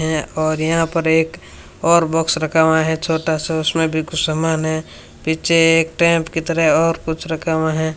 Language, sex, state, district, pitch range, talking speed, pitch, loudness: Hindi, female, Rajasthan, Bikaner, 160-165 Hz, 205 wpm, 160 Hz, -17 LUFS